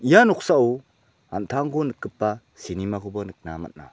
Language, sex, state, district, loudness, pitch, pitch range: Garo, male, Meghalaya, South Garo Hills, -23 LUFS, 105 Hz, 95-125 Hz